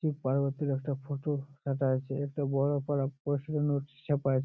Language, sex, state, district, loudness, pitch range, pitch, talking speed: Bengali, male, West Bengal, Jalpaiguri, -32 LUFS, 135-145 Hz, 140 Hz, 150 wpm